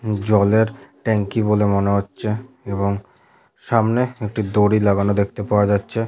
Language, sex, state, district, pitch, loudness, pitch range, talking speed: Bengali, male, West Bengal, Malda, 105 Hz, -19 LUFS, 100-110 Hz, 150 wpm